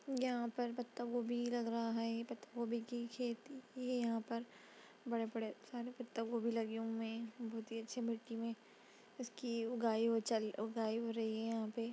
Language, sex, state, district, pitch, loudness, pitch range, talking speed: Hindi, female, Uttar Pradesh, Budaun, 230 Hz, -42 LUFS, 225-240 Hz, 195 wpm